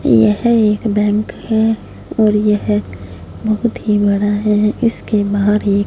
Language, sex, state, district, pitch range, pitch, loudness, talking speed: Hindi, female, Punjab, Fazilka, 200-215 Hz, 210 Hz, -15 LUFS, 135 wpm